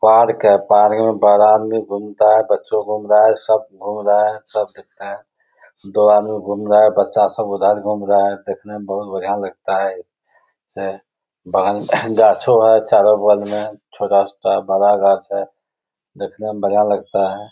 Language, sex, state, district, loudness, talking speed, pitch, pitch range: Hindi, male, Bihar, Bhagalpur, -15 LUFS, 180 wpm, 105 Hz, 100-105 Hz